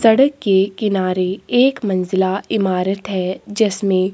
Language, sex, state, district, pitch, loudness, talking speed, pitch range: Hindi, female, Chhattisgarh, Korba, 195 Hz, -17 LUFS, 115 wpm, 185-220 Hz